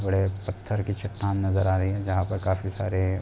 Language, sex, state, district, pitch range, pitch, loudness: Hindi, male, Bihar, Jamui, 95-100 Hz, 95 Hz, -27 LUFS